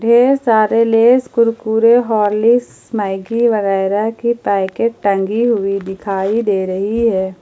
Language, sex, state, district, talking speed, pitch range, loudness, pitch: Hindi, female, Jharkhand, Ranchi, 120 wpm, 195-230 Hz, -15 LUFS, 220 Hz